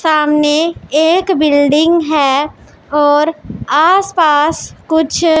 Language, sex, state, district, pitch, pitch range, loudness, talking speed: Hindi, female, Punjab, Pathankot, 310 Hz, 295-330 Hz, -12 LUFS, 80 wpm